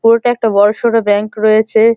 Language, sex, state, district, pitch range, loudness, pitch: Bengali, male, West Bengal, Malda, 215-230 Hz, -12 LUFS, 220 Hz